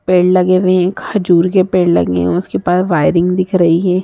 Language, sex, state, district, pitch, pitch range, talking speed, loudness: Hindi, female, Bihar, Sitamarhi, 180 Hz, 175-185 Hz, 225 wpm, -13 LUFS